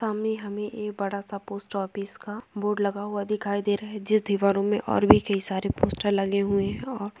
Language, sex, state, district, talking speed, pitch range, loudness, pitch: Hindi, female, Bihar, Begusarai, 215 wpm, 200-210 Hz, -26 LUFS, 205 Hz